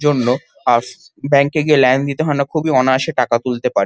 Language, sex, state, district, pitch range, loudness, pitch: Bengali, male, West Bengal, Kolkata, 130-150 Hz, -16 LUFS, 140 Hz